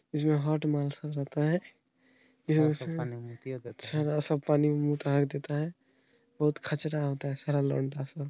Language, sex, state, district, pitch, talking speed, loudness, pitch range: Hindi, male, Bihar, Araria, 150 Hz, 85 wpm, -30 LUFS, 140-155 Hz